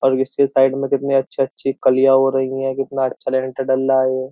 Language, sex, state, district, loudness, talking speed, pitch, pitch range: Hindi, male, Uttar Pradesh, Jyotiba Phule Nagar, -18 LUFS, 220 wpm, 135 Hz, 130-135 Hz